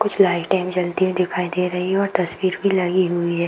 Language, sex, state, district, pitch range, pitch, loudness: Hindi, female, Bihar, Darbhanga, 175-190 Hz, 180 Hz, -20 LUFS